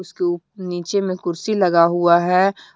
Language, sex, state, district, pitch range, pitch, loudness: Hindi, female, Jharkhand, Deoghar, 175-190 Hz, 180 Hz, -18 LUFS